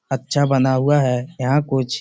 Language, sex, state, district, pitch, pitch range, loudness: Hindi, male, Uttar Pradesh, Budaun, 135 Hz, 130-145 Hz, -18 LUFS